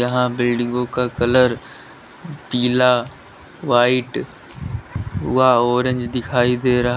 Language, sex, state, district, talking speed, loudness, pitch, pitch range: Hindi, male, Uttar Pradesh, Lalitpur, 95 wpm, -18 LUFS, 125 Hz, 120-125 Hz